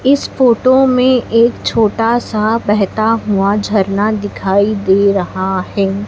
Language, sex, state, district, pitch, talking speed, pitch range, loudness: Hindi, female, Madhya Pradesh, Dhar, 210 Hz, 130 wpm, 200-230 Hz, -13 LUFS